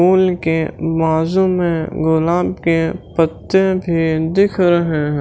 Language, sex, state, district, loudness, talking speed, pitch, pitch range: Hindi, male, Chhattisgarh, Raipur, -16 LUFS, 125 wpm, 165 Hz, 160-180 Hz